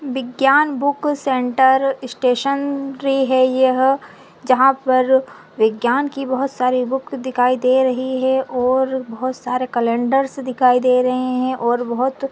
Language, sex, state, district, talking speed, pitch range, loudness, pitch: Hindi, female, Maharashtra, Nagpur, 130 wpm, 255-270 Hz, -18 LUFS, 260 Hz